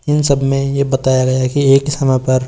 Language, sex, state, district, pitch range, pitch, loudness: Hindi, male, Rajasthan, Jaipur, 130-140 Hz, 135 Hz, -14 LUFS